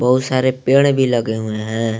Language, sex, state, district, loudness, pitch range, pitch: Hindi, male, Jharkhand, Garhwa, -17 LUFS, 110-130 Hz, 125 Hz